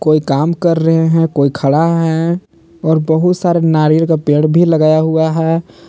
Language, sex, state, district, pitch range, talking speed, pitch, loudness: Hindi, male, Jharkhand, Palamu, 155-165 Hz, 185 wpm, 160 Hz, -13 LUFS